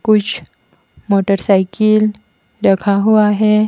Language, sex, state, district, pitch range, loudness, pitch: Hindi, female, Haryana, Jhajjar, 200-215 Hz, -14 LUFS, 210 Hz